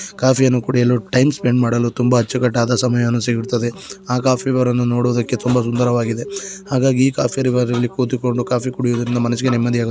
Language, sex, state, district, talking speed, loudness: Kannada, female, Karnataka, Shimoga, 155 wpm, -17 LUFS